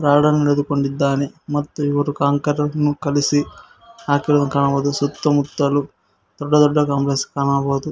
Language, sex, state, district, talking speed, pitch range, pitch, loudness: Kannada, male, Karnataka, Koppal, 115 wpm, 140-145 Hz, 145 Hz, -18 LUFS